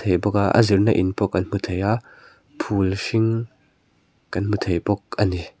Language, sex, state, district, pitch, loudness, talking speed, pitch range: Mizo, male, Mizoram, Aizawl, 100 Hz, -22 LUFS, 195 wpm, 95-105 Hz